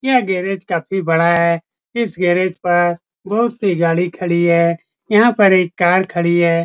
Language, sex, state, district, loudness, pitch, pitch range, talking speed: Hindi, male, Bihar, Supaul, -16 LUFS, 175 Hz, 170-195 Hz, 170 wpm